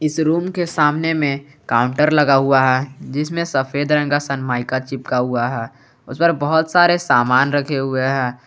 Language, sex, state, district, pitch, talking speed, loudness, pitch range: Hindi, male, Jharkhand, Garhwa, 140 Hz, 175 wpm, -17 LUFS, 130-155 Hz